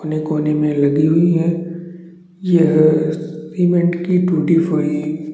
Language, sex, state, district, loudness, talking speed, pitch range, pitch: Hindi, male, Chhattisgarh, Bastar, -16 LUFS, 125 wpm, 155-175 Hz, 160 Hz